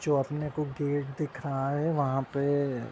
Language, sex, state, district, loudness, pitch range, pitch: Hindi, male, Uttar Pradesh, Budaun, -30 LUFS, 135-150 Hz, 145 Hz